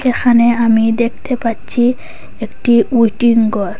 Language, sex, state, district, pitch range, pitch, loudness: Bengali, female, Assam, Hailakandi, 230-245 Hz, 235 Hz, -13 LUFS